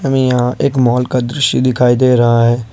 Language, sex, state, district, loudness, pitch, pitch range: Hindi, male, Jharkhand, Ranchi, -13 LUFS, 125 Hz, 120-130 Hz